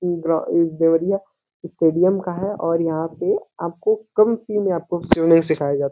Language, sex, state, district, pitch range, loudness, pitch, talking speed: Hindi, male, Uttar Pradesh, Deoria, 165-195 Hz, -20 LUFS, 170 Hz, 150 wpm